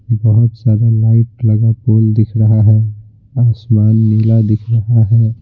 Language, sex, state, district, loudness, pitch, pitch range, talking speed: Hindi, male, Bihar, Patna, -12 LUFS, 110 Hz, 110-115 Hz, 145 wpm